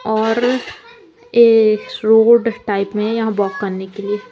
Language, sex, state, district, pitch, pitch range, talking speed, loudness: Hindi, female, Uttar Pradesh, Lalitpur, 220 Hz, 205-230 Hz, 140 wpm, -15 LUFS